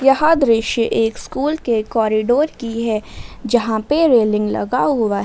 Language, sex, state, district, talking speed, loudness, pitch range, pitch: Hindi, female, Jharkhand, Ranchi, 160 wpm, -17 LUFS, 220-270 Hz, 230 Hz